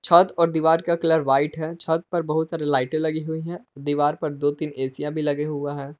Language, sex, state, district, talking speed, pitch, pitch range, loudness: Hindi, male, Jharkhand, Palamu, 240 wpm, 155 Hz, 145-165 Hz, -23 LUFS